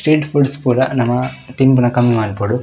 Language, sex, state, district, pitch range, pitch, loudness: Tulu, male, Karnataka, Dakshina Kannada, 120-135 Hz, 125 Hz, -15 LUFS